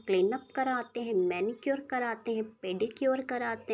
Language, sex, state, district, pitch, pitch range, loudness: Hindi, female, Bihar, Muzaffarpur, 240 Hz, 220-265 Hz, -32 LUFS